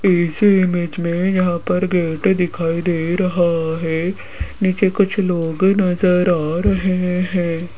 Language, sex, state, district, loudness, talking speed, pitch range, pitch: Hindi, female, Rajasthan, Jaipur, -17 LUFS, 130 wpm, 170-190 Hz, 180 Hz